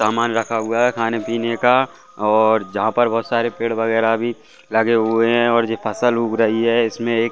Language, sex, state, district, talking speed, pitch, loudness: Hindi, male, Chhattisgarh, Bastar, 180 wpm, 115 Hz, -18 LUFS